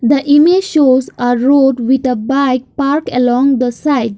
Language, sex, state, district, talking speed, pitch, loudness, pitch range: English, female, Assam, Kamrup Metropolitan, 170 wpm, 265 Hz, -12 LUFS, 250-280 Hz